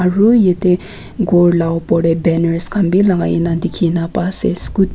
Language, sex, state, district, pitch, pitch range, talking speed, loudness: Nagamese, female, Nagaland, Kohima, 175 Hz, 170-190 Hz, 170 wpm, -14 LUFS